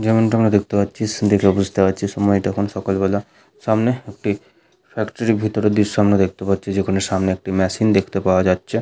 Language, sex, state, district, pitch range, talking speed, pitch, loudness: Bengali, male, West Bengal, Paschim Medinipur, 95-110 Hz, 170 wpm, 100 Hz, -19 LUFS